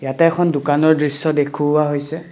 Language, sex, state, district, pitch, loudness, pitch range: Assamese, male, Assam, Kamrup Metropolitan, 150 Hz, -17 LUFS, 145-160 Hz